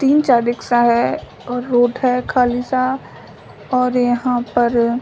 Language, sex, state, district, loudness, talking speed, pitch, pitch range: Hindi, female, Bihar, Samastipur, -17 LUFS, 155 wpm, 245 Hz, 240-255 Hz